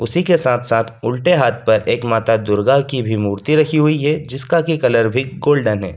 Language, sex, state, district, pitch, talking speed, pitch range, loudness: Hindi, male, Delhi, New Delhi, 130 Hz, 210 wpm, 115-150 Hz, -16 LUFS